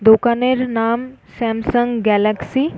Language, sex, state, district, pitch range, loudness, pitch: Bengali, female, West Bengal, North 24 Parganas, 220-250 Hz, -17 LUFS, 235 Hz